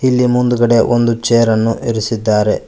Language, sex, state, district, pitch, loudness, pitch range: Kannada, male, Karnataka, Koppal, 115 Hz, -13 LUFS, 115-120 Hz